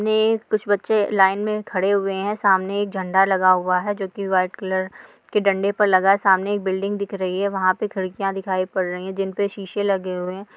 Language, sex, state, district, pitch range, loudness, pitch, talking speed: Hindi, female, Andhra Pradesh, Srikakulam, 190-205 Hz, -21 LUFS, 195 Hz, 225 wpm